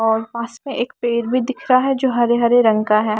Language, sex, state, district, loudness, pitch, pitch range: Hindi, female, Bihar, Kaimur, -18 LUFS, 240 Hz, 225-255 Hz